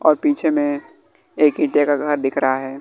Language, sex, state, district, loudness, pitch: Hindi, male, Bihar, West Champaran, -19 LUFS, 150 Hz